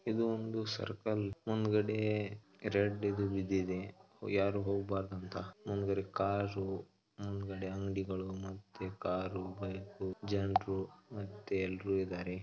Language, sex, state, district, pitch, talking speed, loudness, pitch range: Kannada, male, Karnataka, Dharwad, 100 Hz, 105 wpm, -38 LUFS, 95-105 Hz